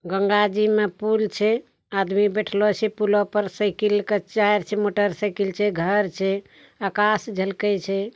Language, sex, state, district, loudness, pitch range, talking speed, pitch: Angika, male, Bihar, Bhagalpur, -22 LUFS, 200-210 Hz, 145 wpm, 205 Hz